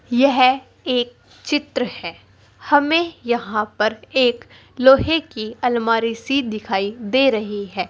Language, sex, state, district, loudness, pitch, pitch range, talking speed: Hindi, female, Uttar Pradesh, Saharanpur, -19 LUFS, 245 Hz, 220-270 Hz, 120 wpm